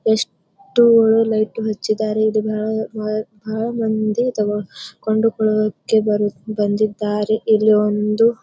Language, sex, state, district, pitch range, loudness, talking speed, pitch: Kannada, female, Karnataka, Bijapur, 210-220 Hz, -18 LUFS, 85 wpm, 215 Hz